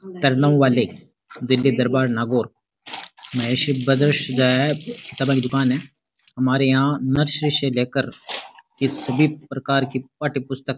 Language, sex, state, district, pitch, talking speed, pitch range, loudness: Rajasthani, male, Rajasthan, Nagaur, 135 Hz, 145 wpm, 130-145 Hz, -20 LUFS